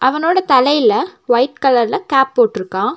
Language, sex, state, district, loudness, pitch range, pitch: Tamil, female, Tamil Nadu, Nilgiris, -14 LUFS, 245-340 Hz, 270 Hz